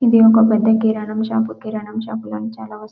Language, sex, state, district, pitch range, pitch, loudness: Telugu, female, Telangana, Karimnagar, 210-225 Hz, 220 Hz, -17 LUFS